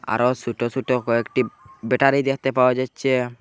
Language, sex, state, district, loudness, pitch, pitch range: Bengali, male, Assam, Hailakandi, -21 LUFS, 125 Hz, 120-130 Hz